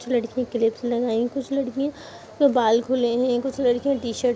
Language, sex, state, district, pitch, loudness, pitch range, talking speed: Hindi, female, Bihar, Jahanabad, 245 Hz, -23 LUFS, 240-270 Hz, 180 wpm